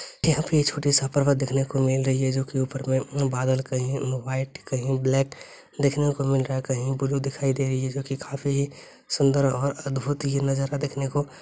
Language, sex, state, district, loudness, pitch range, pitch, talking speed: Maithili, male, Bihar, Begusarai, -25 LUFS, 130-140 Hz, 135 Hz, 215 wpm